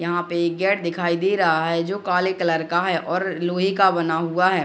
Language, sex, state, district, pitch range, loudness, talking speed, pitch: Hindi, female, Bihar, Gopalganj, 170-185 Hz, -21 LUFS, 255 wpm, 175 Hz